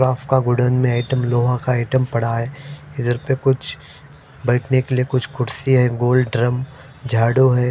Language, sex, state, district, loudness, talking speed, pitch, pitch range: Hindi, male, Punjab, Fazilka, -18 LUFS, 185 wpm, 125 Hz, 120-130 Hz